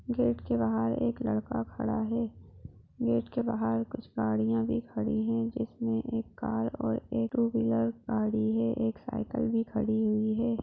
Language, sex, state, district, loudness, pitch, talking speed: Hindi, female, West Bengal, Purulia, -31 LUFS, 115 Hz, 175 wpm